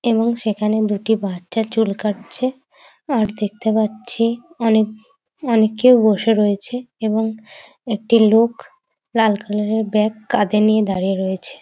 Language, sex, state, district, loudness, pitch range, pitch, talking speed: Bengali, female, West Bengal, Dakshin Dinajpur, -18 LUFS, 210-230 Hz, 220 Hz, 140 wpm